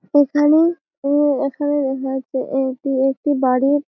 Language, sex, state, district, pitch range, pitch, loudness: Bengali, female, West Bengal, Malda, 265-290 Hz, 280 Hz, -18 LUFS